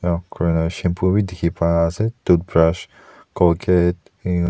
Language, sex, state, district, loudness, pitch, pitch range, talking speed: Nagamese, male, Nagaland, Dimapur, -19 LUFS, 85 Hz, 85-90 Hz, 95 wpm